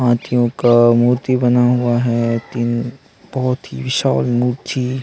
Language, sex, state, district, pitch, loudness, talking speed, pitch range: Hindi, male, Chhattisgarh, Sukma, 120 Hz, -16 LUFS, 145 wpm, 120-125 Hz